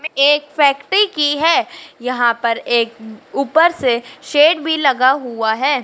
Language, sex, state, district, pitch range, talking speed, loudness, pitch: Hindi, female, Madhya Pradesh, Dhar, 245-310 Hz, 145 wpm, -15 LUFS, 275 Hz